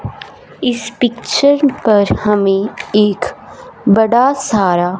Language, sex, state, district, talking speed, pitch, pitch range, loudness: Hindi, female, Punjab, Fazilka, 85 wpm, 220 Hz, 205-245 Hz, -14 LUFS